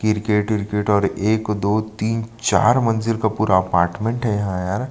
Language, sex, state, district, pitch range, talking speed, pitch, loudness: Hindi, male, Chhattisgarh, Sukma, 100-110 Hz, 185 wpm, 105 Hz, -20 LUFS